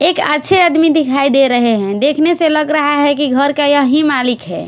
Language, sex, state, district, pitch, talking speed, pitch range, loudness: Hindi, female, Punjab, Pathankot, 290 Hz, 230 wpm, 275-310 Hz, -12 LUFS